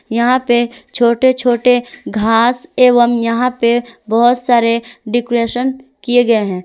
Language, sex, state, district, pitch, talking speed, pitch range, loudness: Hindi, female, Jharkhand, Palamu, 240 Hz, 125 wpm, 235-245 Hz, -14 LUFS